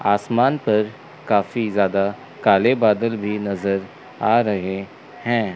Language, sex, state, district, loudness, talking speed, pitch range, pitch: Hindi, male, Chandigarh, Chandigarh, -20 LUFS, 120 wpm, 100-115 Hz, 105 Hz